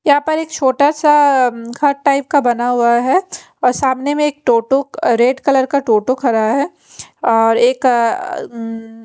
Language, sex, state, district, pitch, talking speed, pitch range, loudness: Hindi, female, Haryana, Rohtak, 260 Hz, 180 wpm, 235-285 Hz, -15 LUFS